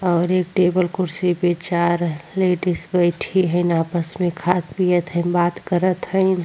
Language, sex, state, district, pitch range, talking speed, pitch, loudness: Bhojpuri, female, Uttar Pradesh, Gorakhpur, 170-185 Hz, 170 wpm, 175 Hz, -20 LUFS